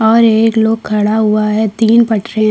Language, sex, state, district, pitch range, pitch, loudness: Hindi, female, Chhattisgarh, Kabirdham, 215-225 Hz, 220 Hz, -12 LUFS